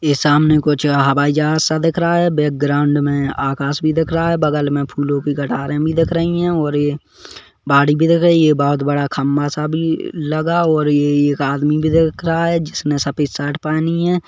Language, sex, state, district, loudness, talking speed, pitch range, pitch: Hindi, male, Chhattisgarh, Kabirdham, -16 LUFS, 225 wpm, 145-160 Hz, 150 Hz